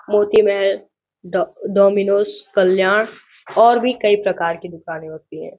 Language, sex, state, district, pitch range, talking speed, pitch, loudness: Hindi, male, Uttar Pradesh, Gorakhpur, 185-210 Hz, 140 wpm, 200 Hz, -17 LUFS